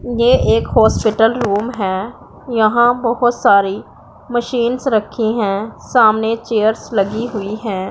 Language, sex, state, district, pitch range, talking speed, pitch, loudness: Hindi, male, Punjab, Pathankot, 210-240 Hz, 120 wpm, 225 Hz, -15 LUFS